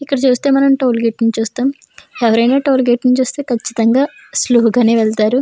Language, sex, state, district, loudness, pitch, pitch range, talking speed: Telugu, female, Andhra Pradesh, Chittoor, -14 LUFS, 245 Hz, 230-270 Hz, 145 wpm